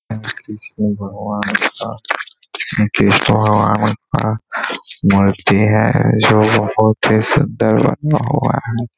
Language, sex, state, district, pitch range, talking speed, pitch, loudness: Hindi, male, Bihar, Jamui, 105-115 Hz, 100 wpm, 110 Hz, -15 LUFS